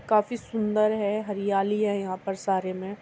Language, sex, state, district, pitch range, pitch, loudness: Hindi, female, Uttar Pradesh, Muzaffarnagar, 195-215 Hz, 205 Hz, -27 LUFS